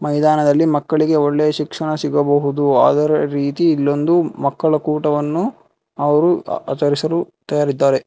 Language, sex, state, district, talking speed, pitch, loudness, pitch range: Kannada, male, Karnataka, Bangalore, 95 wpm, 150 Hz, -17 LUFS, 145-155 Hz